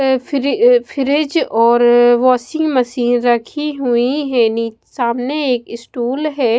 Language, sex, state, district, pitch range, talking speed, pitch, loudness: Hindi, female, Bihar, Katihar, 240-285 Hz, 110 wpm, 250 Hz, -15 LUFS